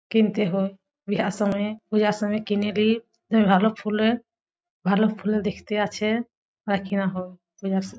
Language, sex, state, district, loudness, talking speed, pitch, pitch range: Bengali, female, West Bengal, Jhargram, -24 LUFS, 145 wpm, 210 Hz, 200-220 Hz